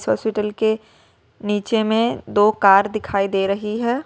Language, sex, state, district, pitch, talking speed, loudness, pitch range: Hindi, female, Jharkhand, Ranchi, 210 Hz, 150 wpm, -19 LUFS, 200-220 Hz